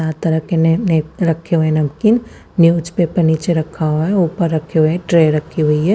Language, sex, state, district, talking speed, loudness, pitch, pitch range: Hindi, female, Punjab, Fazilka, 190 wpm, -15 LUFS, 165 Hz, 155-170 Hz